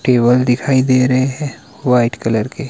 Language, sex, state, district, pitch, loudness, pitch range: Hindi, male, Himachal Pradesh, Shimla, 130 Hz, -15 LUFS, 120-130 Hz